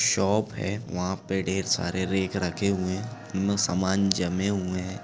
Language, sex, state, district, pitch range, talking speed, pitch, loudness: Hindi, female, Chhattisgarh, Bastar, 95-100 Hz, 165 wpm, 95 Hz, -27 LUFS